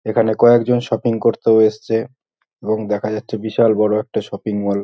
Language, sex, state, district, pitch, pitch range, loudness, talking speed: Bengali, male, West Bengal, North 24 Parganas, 110 Hz, 105-115 Hz, -17 LUFS, 175 wpm